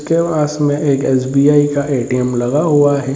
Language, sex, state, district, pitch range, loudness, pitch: Hindi, male, Bihar, Jamui, 135-150 Hz, -14 LUFS, 145 Hz